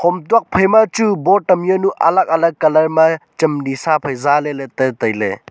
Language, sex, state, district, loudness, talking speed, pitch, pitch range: Wancho, male, Arunachal Pradesh, Longding, -15 LUFS, 215 wpm, 160 Hz, 145-190 Hz